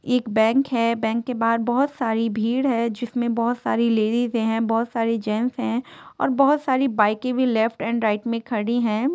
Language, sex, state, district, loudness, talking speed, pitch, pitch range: Hindi, female, Jharkhand, Sahebganj, -22 LUFS, 190 wpm, 235 Hz, 225-250 Hz